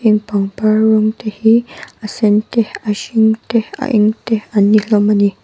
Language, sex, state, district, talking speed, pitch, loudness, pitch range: Mizo, female, Mizoram, Aizawl, 165 wpm, 215 Hz, -14 LUFS, 210-225 Hz